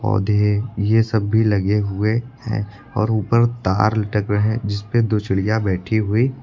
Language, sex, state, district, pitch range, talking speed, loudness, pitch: Hindi, male, Uttar Pradesh, Lucknow, 105-110 Hz, 170 wpm, -19 LUFS, 110 Hz